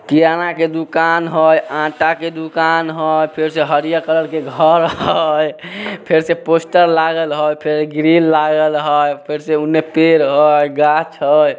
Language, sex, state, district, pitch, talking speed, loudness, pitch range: Maithili, male, Bihar, Samastipur, 160 Hz, 160 wpm, -14 LUFS, 150-165 Hz